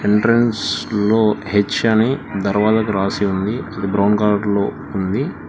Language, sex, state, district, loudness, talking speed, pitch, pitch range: Telugu, male, Telangana, Hyderabad, -17 LUFS, 130 wpm, 105 Hz, 100-110 Hz